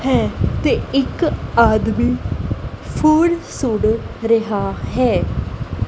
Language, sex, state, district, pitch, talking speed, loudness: Punjabi, female, Punjab, Kapurthala, 220 Hz, 70 wpm, -18 LUFS